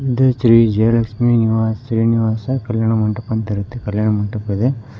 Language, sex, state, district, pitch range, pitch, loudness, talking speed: Kannada, male, Karnataka, Koppal, 110-120 Hz, 115 Hz, -17 LUFS, 130 wpm